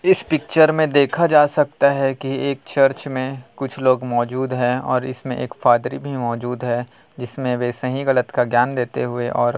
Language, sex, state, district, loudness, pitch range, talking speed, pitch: Hindi, male, Chhattisgarh, Kabirdham, -19 LUFS, 125-140 Hz, 190 wpm, 130 Hz